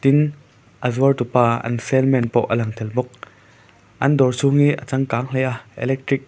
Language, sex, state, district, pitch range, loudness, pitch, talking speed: Mizo, male, Mizoram, Aizawl, 115-135 Hz, -19 LUFS, 125 Hz, 190 wpm